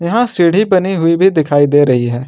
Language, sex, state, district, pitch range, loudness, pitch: Hindi, male, Jharkhand, Ranchi, 145-190 Hz, -12 LUFS, 170 Hz